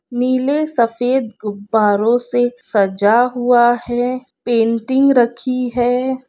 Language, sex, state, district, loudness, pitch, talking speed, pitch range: Hindi, female, Bihar, Purnia, -16 LUFS, 245 Hz, 95 wpm, 230-255 Hz